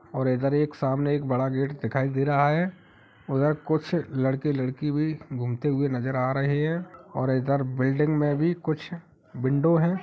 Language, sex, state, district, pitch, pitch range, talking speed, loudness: Hindi, male, Uttar Pradesh, Etah, 145 Hz, 130-155 Hz, 180 wpm, -26 LUFS